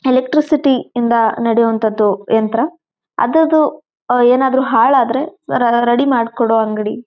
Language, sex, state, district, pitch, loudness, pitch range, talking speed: Kannada, female, Karnataka, Gulbarga, 240 Hz, -14 LUFS, 230-270 Hz, 85 wpm